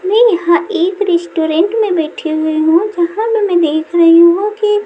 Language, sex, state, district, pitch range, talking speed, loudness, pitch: Hindi, female, Maharashtra, Mumbai Suburban, 330-415 Hz, 185 wpm, -12 LUFS, 345 Hz